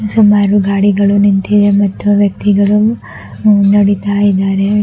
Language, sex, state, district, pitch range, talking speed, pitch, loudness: Kannada, female, Karnataka, Raichur, 200-205 Hz, 85 wpm, 205 Hz, -11 LUFS